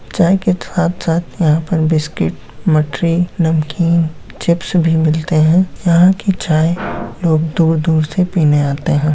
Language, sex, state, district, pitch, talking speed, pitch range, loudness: Hindi, male, Bihar, Samastipur, 165 Hz, 140 wpm, 155-175 Hz, -15 LUFS